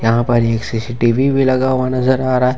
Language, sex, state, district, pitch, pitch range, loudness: Hindi, male, Jharkhand, Ranchi, 125 Hz, 115-130 Hz, -15 LUFS